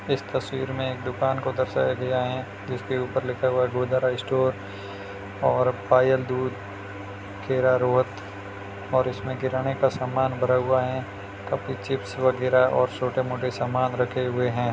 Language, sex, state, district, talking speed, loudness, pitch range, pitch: Hindi, male, Rajasthan, Churu, 150 wpm, -25 LUFS, 100-130 Hz, 125 Hz